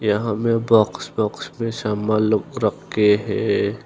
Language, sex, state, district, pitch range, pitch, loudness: Hindi, male, Arunachal Pradesh, Longding, 105-115 Hz, 110 Hz, -20 LUFS